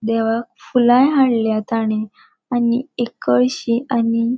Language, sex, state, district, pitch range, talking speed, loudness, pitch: Konkani, female, Goa, North and South Goa, 225-245 Hz, 125 wpm, -18 LUFS, 235 Hz